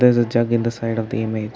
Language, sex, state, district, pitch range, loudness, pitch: English, male, Karnataka, Bangalore, 115-120 Hz, -20 LUFS, 115 Hz